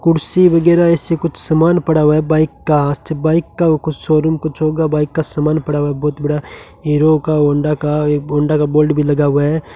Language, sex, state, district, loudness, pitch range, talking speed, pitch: Hindi, male, Rajasthan, Bikaner, -14 LUFS, 150-160 Hz, 210 wpm, 155 Hz